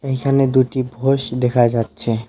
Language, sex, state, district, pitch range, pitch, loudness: Bengali, male, West Bengal, Alipurduar, 120-135 Hz, 130 Hz, -17 LUFS